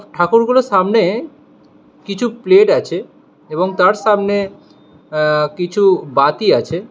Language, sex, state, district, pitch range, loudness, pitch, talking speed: Bengali, male, West Bengal, Alipurduar, 155-225 Hz, -14 LUFS, 195 Hz, 105 wpm